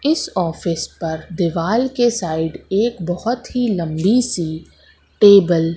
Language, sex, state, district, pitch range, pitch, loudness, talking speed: Hindi, female, Madhya Pradesh, Katni, 165-235 Hz, 180 Hz, -18 LUFS, 135 wpm